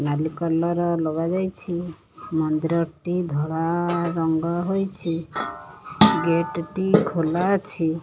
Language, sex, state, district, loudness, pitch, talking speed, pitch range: Odia, female, Odisha, Khordha, -23 LUFS, 170 Hz, 80 wpm, 160-175 Hz